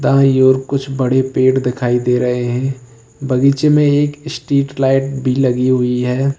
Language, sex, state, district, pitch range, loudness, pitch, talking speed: Hindi, male, Uttar Pradesh, Lalitpur, 125-135 Hz, -15 LUFS, 130 Hz, 170 wpm